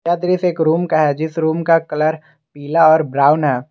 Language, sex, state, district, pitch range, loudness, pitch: Hindi, male, Jharkhand, Garhwa, 150-165 Hz, -15 LUFS, 160 Hz